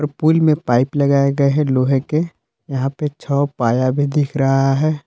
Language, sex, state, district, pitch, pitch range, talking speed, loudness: Hindi, male, Jharkhand, Palamu, 140 Hz, 135-150 Hz, 190 wpm, -17 LUFS